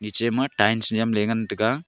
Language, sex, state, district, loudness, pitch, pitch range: Wancho, male, Arunachal Pradesh, Longding, -22 LUFS, 110 Hz, 110-115 Hz